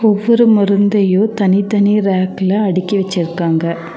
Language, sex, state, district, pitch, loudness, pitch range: Tamil, female, Tamil Nadu, Nilgiris, 200 Hz, -14 LUFS, 185-210 Hz